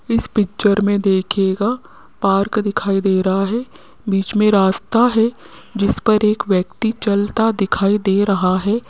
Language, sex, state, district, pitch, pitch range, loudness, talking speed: Hindi, female, Rajasthan, Jaipur, 205 Hz, 195-220 Hz, -17 LUFS, 150 wpm